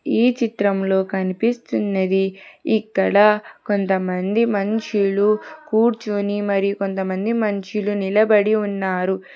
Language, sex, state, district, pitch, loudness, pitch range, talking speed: Telugu, female, Telangana, Hyderabad, 205 Hz, -20 LUFS, 195-215 Hz, 75 wpm